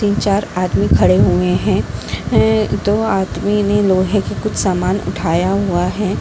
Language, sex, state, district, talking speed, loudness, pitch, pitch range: Hindi, female, Bihar, Saharsa, 185 wpm, -16 LUFS, 190 Hz, 175-205 Hz